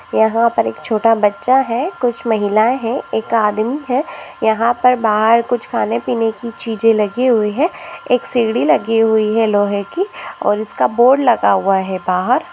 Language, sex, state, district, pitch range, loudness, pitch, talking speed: Hindi, female, Maharashtra, Nagpur, 215-250 Hz, -15 LUFS, 230 Hz, 180 wpm